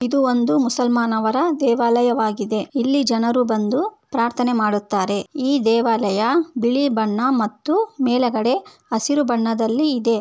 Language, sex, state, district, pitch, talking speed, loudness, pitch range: Kannada, female, Karnataka, Bellary, 240 Hz, 105 wpm, -19 LUFS, 225-275 Hz